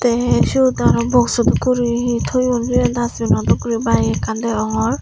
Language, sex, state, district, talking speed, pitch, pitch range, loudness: Chakma, female, Tripura, Dhalai, 205 wpm, 235 Hz, 220-245 Hz, -17 LUFS